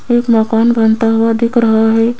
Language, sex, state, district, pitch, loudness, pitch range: Hindi, female, Rajasthan, Jaipur, 225 Hz, -12 LUFS, 225-235 Hz